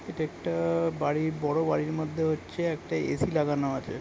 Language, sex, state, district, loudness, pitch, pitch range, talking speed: Bengali, male, West Bengal, Kolkata, -29 LUFS, 150 Hz, 135-160 Hz, 150 wpm